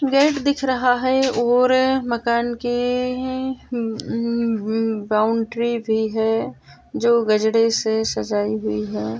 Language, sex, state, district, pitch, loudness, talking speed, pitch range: Hindi, female, Bihar, Jahanabad, 235 Hz, -20 LUFS, 115 wpm, 220-250 Hz